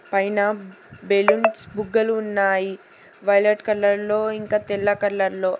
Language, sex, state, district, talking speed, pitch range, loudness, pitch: Telugu, female, Telangana, Hyderabad, 120 wpm, 200-215 Hz, -21 LUFS, 205 Hz